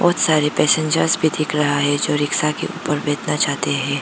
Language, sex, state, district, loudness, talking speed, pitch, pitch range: Hindi, female, Arunachal Pradesh, Lower Dibang Valley, -18 LUFS, 210 wpm, 150 Hz, 145-155 Hz